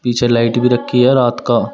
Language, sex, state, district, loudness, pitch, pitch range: Hindi, male, Uttar Pradesh, Shamli, -13 LUFS, 120 Hz, 120-125 Hz